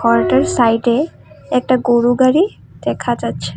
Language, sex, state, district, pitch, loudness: Bengali, female, Assam, Kamrup Metropolitan, 240 Hz, -15 LUFS